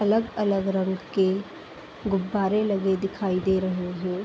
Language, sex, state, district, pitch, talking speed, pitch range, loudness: Hindi, female, Uttar Pradesh, Hamirpur, 195 Hz, 140 wpm, 190-200 Hz, -25 LUFS